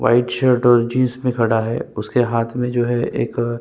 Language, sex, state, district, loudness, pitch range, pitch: Hindi, male, Chhattisgarh, Sukma, -18 LUFS, 115-125 Hz, 120 Hz